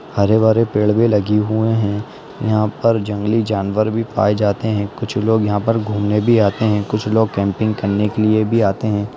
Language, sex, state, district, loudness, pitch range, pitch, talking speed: Hindi, male, Bihar, Gaya, -17 LUFS, 105-110 Hz, 110 Hz, 230 wpm